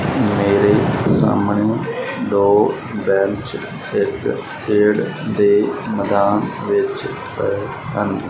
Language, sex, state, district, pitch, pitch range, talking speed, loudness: Punjabi, male, Punjab, Fazilka, 105 Hz, 100-110 Hz, 70 wpm, -18 LUFS